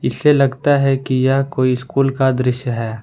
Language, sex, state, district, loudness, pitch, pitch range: Hindi, male, Jharkhand, Palamu, -16 LUFS, 130 Hz, 125-135 Hz